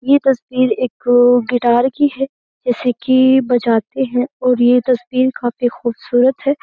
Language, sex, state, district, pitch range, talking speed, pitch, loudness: Hindi, female, Uttar Pradesh, Jyotiba Phule Nagar, 245-260 Hz, 145 wpm, 250 Hz, -15 LUFS